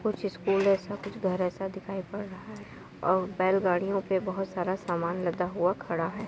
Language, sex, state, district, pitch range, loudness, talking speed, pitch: Hindi, female, Uttar Pradesh, Muzaffarnagar, 180-195 Hz, -29 LUFS, 190 wpm, 190 Hz